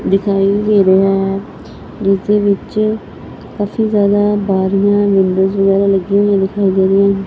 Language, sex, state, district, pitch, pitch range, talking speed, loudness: Punjabi, female, Punjab, Fazilka, 200 Hz, 195-205 Hz, 140 wpm, -13 LUFS